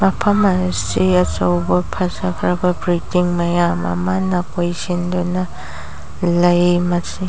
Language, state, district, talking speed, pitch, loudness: Manipuri, Manipur, Imphal West, 90 wpm, 175 Hz, -18 LUFS